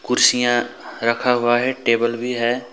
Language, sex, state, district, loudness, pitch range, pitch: Hindi, male, West Bengal, Alipurduar, -18 LUFS, 120-125 Hz, 120 Hz